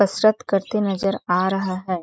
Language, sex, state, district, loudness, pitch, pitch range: Hindi, female, Chhattisgarh, Balrampur, -21 LUFS, 195 Hz, 185-200 Hz